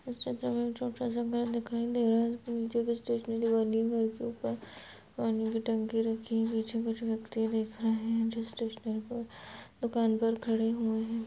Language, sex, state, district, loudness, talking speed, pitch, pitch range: Hindi, female, Chhattisgarh, Bastar, -32 LUFS, 195 wpm, 230 Hz, 225-235 Hz